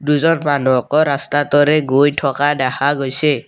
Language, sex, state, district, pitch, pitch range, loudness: Assamese, male, Assam, Kamrup Metropolitan, 145 Hz, 135-150 Hz, -15 LUFS